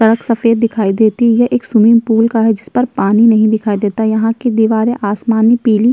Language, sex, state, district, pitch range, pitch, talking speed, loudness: Hindi, female, Uttar Pradesh, Jyotiba Phule Nagar, 220-235 Hz, 225 Hz, 225 wpm, -12 LUFS